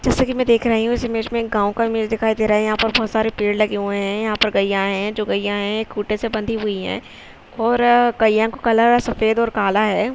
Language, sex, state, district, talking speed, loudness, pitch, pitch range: Hindi, female, Jharkhand, Sahebganj, 280 wpm, -18 LUFS, 220 Hz, 210-230 Hz